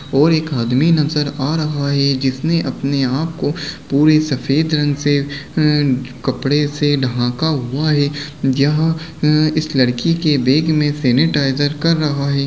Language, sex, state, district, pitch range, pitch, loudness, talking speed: Hindi, male, Bihar, Gaya, 135-155 Hz, 145 Hz, -16 LUFS, 145 wpm